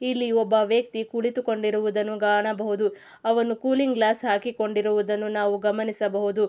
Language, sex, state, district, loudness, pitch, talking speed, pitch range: Kannada, female, Karnataka, Mysore, -24 LUFS, 215 Hz, 100 wpm, 210-230 Hz